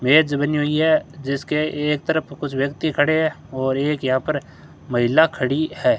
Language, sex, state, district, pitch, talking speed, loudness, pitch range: Hindi, male, Rajasthan, Bikaner, 150 Hz, 180 wpm, -20 LUFS, 135-155 Hz